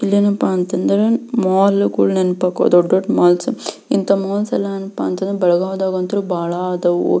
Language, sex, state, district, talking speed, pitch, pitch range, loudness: Kannada, female, Karnataka, Belgaum, 165 wpm, 190 Hz, 180-200 Hz, -17 LUFS